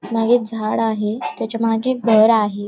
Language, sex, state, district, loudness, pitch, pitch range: Marathi, female, Maharashtra, Pune, -18 LUFS, 225 Hz, 215-230 Hz